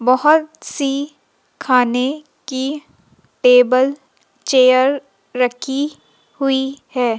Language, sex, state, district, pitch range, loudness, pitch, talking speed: Hindi, female, Madhya Pradesh, Umaria, 255-280 Hz, -17 LUFS, 265 Hz, 75 wpm